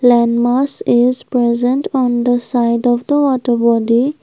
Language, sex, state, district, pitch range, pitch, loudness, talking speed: English, female, Assam, Kamrup Metropolitan, 235-260 Hz, 245 Hz, -14 LUFS, 140 wpm